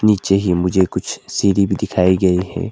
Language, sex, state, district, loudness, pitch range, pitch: Hindi, male, Arunachal Pradesh, Lower Dibang Valley, -17 LUFS, 90-100 Hz, 95 Hz